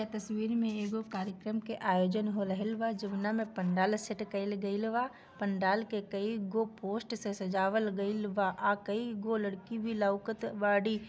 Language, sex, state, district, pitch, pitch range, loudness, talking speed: Bhojpuri, female, Bihar, Gopalganj, 210 Hz, 200-220 Hz, -34 LUFS, 135 wpm